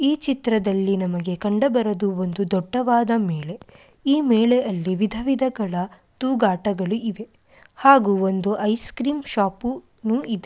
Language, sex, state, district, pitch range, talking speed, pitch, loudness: Kannada, female, Karnataka, Mysore, 195-250 Hz, 115 wpm, 215 Hz, -22 LUFS